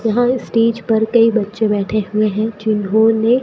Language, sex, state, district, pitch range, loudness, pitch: Hindi, female, Rajasthan, Bikaner, 215-230 Hz, -16 LUFS, 220 Hz